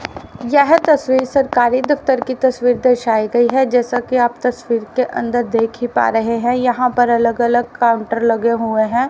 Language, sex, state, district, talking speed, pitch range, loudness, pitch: Hindi, female, Haryana, Rohtak, 185 wpm, 235-255 Hz, -15 LUFS, 245 Hz